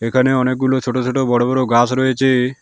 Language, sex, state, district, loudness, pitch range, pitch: Bengali, male, West Bengal, Alipurduar, -16 LUFS, 125-130 Hz, 130 Hz